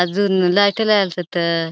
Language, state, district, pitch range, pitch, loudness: Bhili, Maharashtra, Dhule, 175-200 Hz, 185 Hz, -17 LUFS